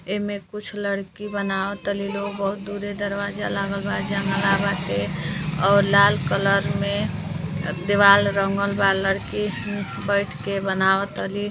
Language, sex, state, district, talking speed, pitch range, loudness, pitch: Bhojpuri, female, Uttar Pradesh, Deoria, 130 wpm, 195-200 Hz, -22 LUFS, 200 Hz